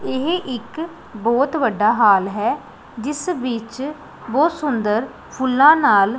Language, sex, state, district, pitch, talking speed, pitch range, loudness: Punjabi, female, Punjab, Pathankot, 260 Hz, 115 wpm, 225-300 Hz, -19 LUFS